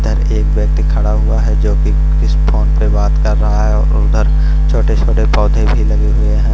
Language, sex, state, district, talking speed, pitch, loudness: Hindi, male, Punjab, Fazilka, 200 wpm, 75 Hz, -14 LUFS